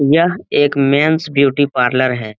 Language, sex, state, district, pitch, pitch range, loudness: Hindi, male, Bihar, Lakhisarai, 140 Hz, 130-150 Hz, -14 LUFS